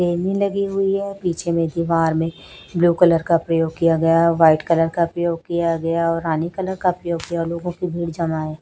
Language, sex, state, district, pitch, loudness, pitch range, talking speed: Hindi, female, Chhattisgarh, Raipur, 170 Hz, -19 LUFS, 165-175 Hz, 215 wpm